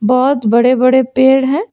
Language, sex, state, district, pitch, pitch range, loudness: Hindi, female, Karnataka, Bangalore, 260 Hz, 250-265 Hz, -11 LUFS